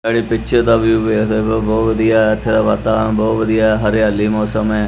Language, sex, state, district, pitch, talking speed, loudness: Punjabi, male, Punjab, Kapurthala, 110 Hz, 245 wpm, -15 LUFS